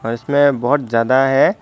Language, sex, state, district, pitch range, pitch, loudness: Hindi, male, Tripura, Dhalai, 115-140 Hz, 130 Hz, -15 LUFS